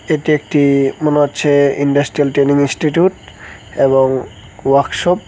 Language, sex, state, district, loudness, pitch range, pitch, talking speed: Bengali, male, West Bengal, Cooch Behar, -14 LUFS, 135-150 Hz, 140 Hz, 115 wpm